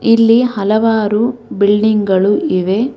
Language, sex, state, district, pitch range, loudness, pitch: Kannada, female, Karnataka, Bangalore, 205-230 Hz, -13 LUFS, 215 Hz